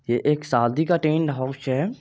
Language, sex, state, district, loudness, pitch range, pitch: Maithili, male, Bihar, Supaul, -23 LUFS, 130-160 Hz, 150 Hz